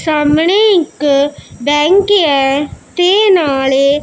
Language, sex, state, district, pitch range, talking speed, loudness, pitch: Punjabi, female, Punjab, Pathankot, 280-365 Hz, 90 wpm, -11 LUFS, 300 Hz